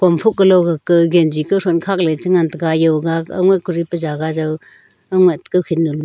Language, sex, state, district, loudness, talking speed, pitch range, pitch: Wancho, female, Arunachal Pradesh, Longding, -15 LUFS, 190 wpm, 160-180 Hz, 170 Hz